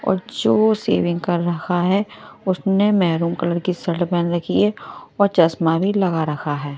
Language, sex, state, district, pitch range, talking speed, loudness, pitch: Hindi, male, Odisha, Malkangiri, 170-200 Hz, 175 wpm, -19 LUFS, 175 Hz